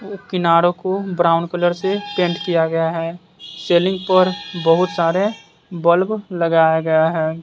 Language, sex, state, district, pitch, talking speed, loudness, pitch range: Hindi, male, Bihar, West Champaran, 175 Hz, 135 wpm, -18 LUFS, 165-185 Hz